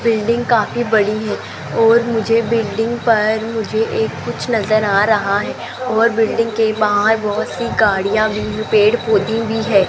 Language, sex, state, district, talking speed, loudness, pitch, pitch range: Hindi, female, Rajasthan, Jaipur, 165 wpm, -16 LUFS, 220 Hz, 215-230 Hz